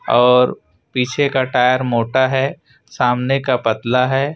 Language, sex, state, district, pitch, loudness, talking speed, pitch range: Hindi, male, Chhattisgarh, Raipur, 130 Hz, -16 LUFS, 140 wpm, 125-135 Hz